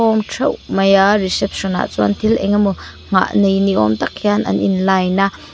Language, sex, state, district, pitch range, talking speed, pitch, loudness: Mizo, female, Mizoram, Aizawl, 190-205 Hz, 205 wpm, 195 Hz, -16 LUFS